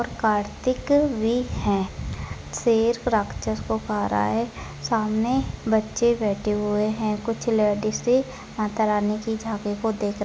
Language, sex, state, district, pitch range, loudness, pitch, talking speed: Hindi, female, Maharashtra, Chandrapur, 210-235 Hz, -24 LUFS, 220 Hz, 130 wpm